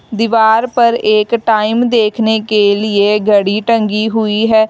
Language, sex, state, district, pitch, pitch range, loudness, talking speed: Hindi, female, Uttar Pradesh, Lalitpur, 220 Hz, 210-230 Hz, -12 LUFS, 140 wpm